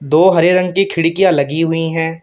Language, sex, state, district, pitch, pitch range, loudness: Hindi, male, Uttar Pradesh, Shamli, 165 Hz, 160-185 Hz, -13 LUFS